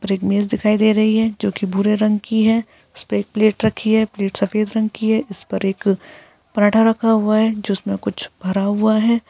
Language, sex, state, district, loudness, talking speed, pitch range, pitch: Hindi, female, Bihar, Gaya, -18 LUFS, 225 wpm, 200-220 Hz, 215 Hz